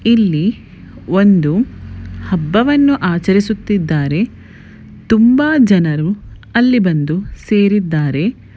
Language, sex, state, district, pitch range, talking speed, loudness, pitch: Kannada, female, Karnataka, Bellary, 155-225 Hz, 70 wpm, -14 LUFS, 195 Hz